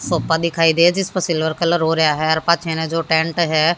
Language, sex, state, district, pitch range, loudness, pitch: Hindi, female, Haryana, Jhajjar, 160-170 Hz, -17 LUFS, 165 Hz